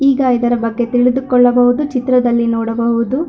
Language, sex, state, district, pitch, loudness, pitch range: Kannada, female, Karnataka, Shimoga, 245 Hz, -14 LUFS, 235-255 Hz